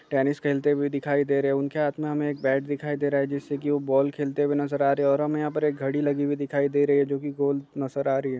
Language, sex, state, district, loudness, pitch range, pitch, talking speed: Hindi, male, Chhattisgarh, Bastar, -25 LUFS, 140-145 Hz, 140 Hz, 330 wpm